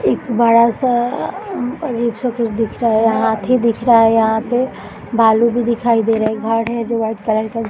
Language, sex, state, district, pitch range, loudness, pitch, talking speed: Hindi, female, Bihar, Jahanabad, 225-235 Hz, -16 LUFS, 230 Hz, 225 wpm